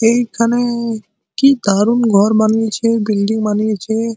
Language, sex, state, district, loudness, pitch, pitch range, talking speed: Bengali, male, West Bengal, Malda, -15 LUFS, 225 Hz, 215-235 Hz, 160 wpm